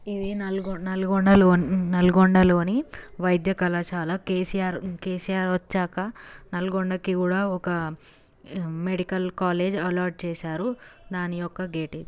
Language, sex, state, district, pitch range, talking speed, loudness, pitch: Telugu, female, Telangana, Nalgonda, 175-190 Hz, 105 wpm, -24 LUFS, 185 Hz